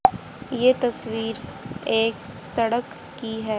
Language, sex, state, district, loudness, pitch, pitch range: Hindi, female, Haryana, Rohtak, -24 LUFS, 230 Hz, 225-245 Hz